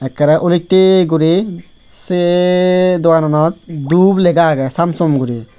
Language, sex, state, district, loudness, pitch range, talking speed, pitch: Chakma, male, Tripura, West Tripura, -12 LUFS, 155-180 Hz, 105 wpm, 170 Hz